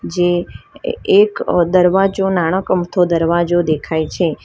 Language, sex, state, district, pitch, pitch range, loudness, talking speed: Gujarati, female, Gujarat, Valsad, 180 Hz, 170-195 Hz, -15 LUFS, 135 wpm